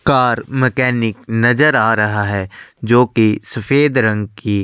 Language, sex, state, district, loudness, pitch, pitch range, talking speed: Hindi, male, Chhattisgarh, Korba, -15 LUFS, 115 Hz, 105-125 Hz, 140 wpm